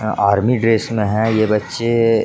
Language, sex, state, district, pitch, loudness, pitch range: Hindi, male, Jharkhand, Jamtara, 110 Hz, -16 LUFS, 105-115 Hz